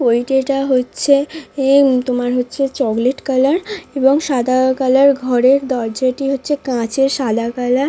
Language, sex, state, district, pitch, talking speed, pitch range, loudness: Bengali, female, West Bengal, Dakshin Dinajpur, 265 Hz, 130 wpm, 250-275 Hz, -16 LUFS